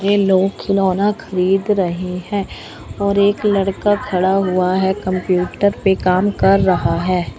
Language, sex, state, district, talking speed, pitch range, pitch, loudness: Hindi, male, Chandigarh, Chandigarh, 145 wpm, 185-200 Hz, 190 Hz, -16 LUFS